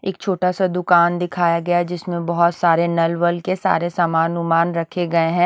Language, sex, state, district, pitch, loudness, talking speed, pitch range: Hindi, female, Haryana, Rohtak, 175 Hz, -18 LUFS, 210 wpm, 170-180 Hz